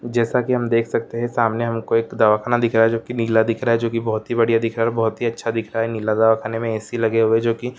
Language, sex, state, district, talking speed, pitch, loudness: Hindi, male, West Bengal, Purulia, 295 wpm, 115 Hz, -20 LUFS